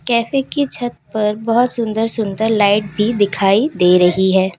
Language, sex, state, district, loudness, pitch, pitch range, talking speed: Hindi, female, Uttar Pradesh, Lalitpur, -15 LUFS, 220 Hz, 195-235 Hz, 155 wpm